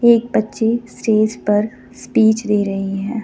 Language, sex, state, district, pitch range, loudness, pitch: Hindi, female, Jharkhand, Deoghar, 205-225 Hz, -17 LUFS, 220 Hz